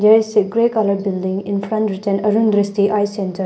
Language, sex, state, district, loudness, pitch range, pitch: English, female, Arunachal Pradesh, Papum Pare, -17 LUFS, 195-215 Hz, 205 Hz